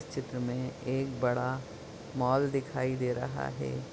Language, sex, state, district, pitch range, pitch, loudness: Hindi, male, Chhattisgarh, Sukma, 125-130 Hz, 125 Hz, -33 LUFS